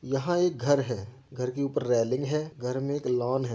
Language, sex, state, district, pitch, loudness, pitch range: Hindi, male, Uttar Pradesh, Jyotiba Phule Nagar, 130 Hz, -28 LUFS, 125-145 Hz